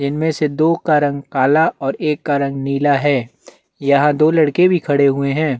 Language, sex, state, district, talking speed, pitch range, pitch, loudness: Hindi, male, Chhattisgarh, Bastar, 205 wpm, 140-155 Hz, 145 Hz, -16 LUFS